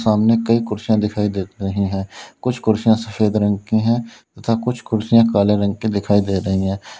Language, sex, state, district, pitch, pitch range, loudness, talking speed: Hindi, male, Uttar Pradesh, Lalitpur, 105 Hz, 100-115 Hz, -18 LUFS, 195 wpm